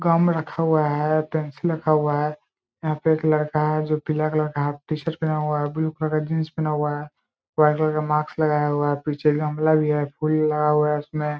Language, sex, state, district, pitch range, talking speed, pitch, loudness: Hindi, male, Bihar, Muzaffarpur, 150-155 Hz, 235 wpm, 155 Hz, -22 LUFS